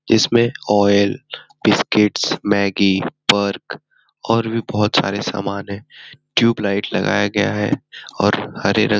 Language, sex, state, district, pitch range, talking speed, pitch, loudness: Hindi, male, Bihar, Jamui, 100-115 Hz, 120 wpm, 105 Hz, -18 LUFS